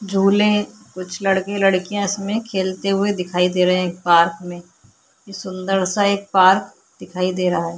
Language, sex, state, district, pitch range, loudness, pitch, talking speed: Hindi, female, Chhattisgarh, Korba, 180-200 Hz, -18 LUFS, 190 Hz, 155 wpm